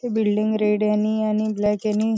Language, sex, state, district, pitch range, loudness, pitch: Marathi, female, Maharashtra, Nagpur, 210-215 Hz, -21 LUFS, 215 Hz